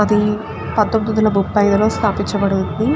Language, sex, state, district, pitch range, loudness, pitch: Telugu, female, Andhra Pradesh, Guntur, 205-220 Hz, -17 LUFS, 210 Hz